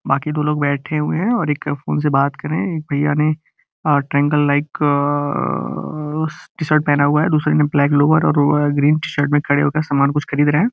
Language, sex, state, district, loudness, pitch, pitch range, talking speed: Hindi, male, Uttar Pradesh, Gorakhpur, -17 LUFS, 150 Hz, 145-155 Hz, 225 wpm